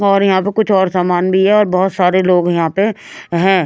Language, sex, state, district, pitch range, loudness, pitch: Hindi, female, Haryana, Rohtak, 180-200 Hz, -13 LUFS, 190 Hz